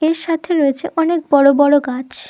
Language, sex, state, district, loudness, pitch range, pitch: Bengali, female, West Bengal, Dakshin Dinajpur, -15 LUFS, 280-330 Hz, 310 Hz